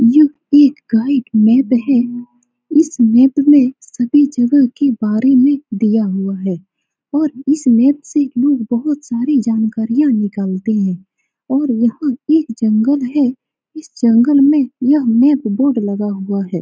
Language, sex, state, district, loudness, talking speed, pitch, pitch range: Hindi, female, Bihar, Saran, -14 LUFS, 150 wpm, 250 Hz, 225-285 Hz